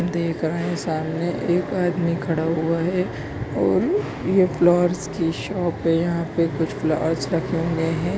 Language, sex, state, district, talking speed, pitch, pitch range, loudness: Hindi, male, Bihar, Bhagalpur, 155 wpm, 170 Hz, 160-175 Hz, -22 LUFS